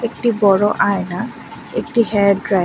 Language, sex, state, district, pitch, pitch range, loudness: Bengali, female, Tripura, West Tripura, 205 Hz, 195-235 Hz, -17 LUFS